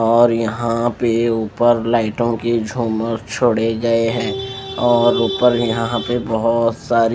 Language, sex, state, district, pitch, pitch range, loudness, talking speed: Hindi, male, Maharashtra, Mumbai Suburban, 115 Hz, 115-120 Hz, -17 LUFS, 135 wpm